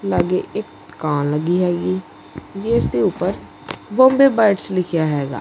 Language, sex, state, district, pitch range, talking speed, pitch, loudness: Punjabi, male, Punjab, Kapurthala, 140-195 Hz, 135 wpm, 170 Hz, -18 LUFS